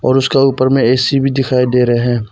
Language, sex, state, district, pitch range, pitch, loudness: Hindi, male, Arunachal Pradesh, Papum Pare, 125-135 Hz, 130 Hz, -13 LUFS